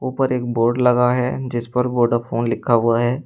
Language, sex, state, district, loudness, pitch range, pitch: Hindi, male, Uttar Pradesh, Shamli, -19 LUFS, 120-125 Hz, 125 Hz